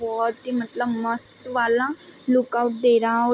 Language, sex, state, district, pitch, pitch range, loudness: Hindi, female, Bihar, East Champaran, 240 Hz, 230-245 Hz, -23 LUFS